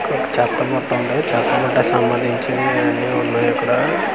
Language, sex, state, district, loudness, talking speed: Telugu, male, Andhra Pradesh, Manyam, -18 LUFS, 100 wpm